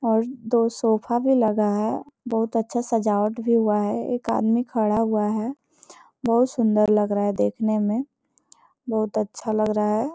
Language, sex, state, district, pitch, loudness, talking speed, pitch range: Hindi, female, Bihar, Gopalganj, 225 Hz, -23 LUFS, 170 wpm, 215-245 Hz